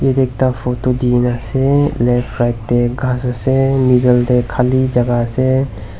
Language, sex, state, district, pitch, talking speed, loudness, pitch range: Nagamese, male, Nagaland, Dimapur, 125 Hz, 140 wpm, -15 LUFS, 120-130 Hz